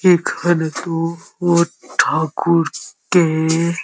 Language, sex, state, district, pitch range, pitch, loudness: Bengali, male, West Bengal, Jhargram, 160-170 Hz, 170 Hz, -18 LUFS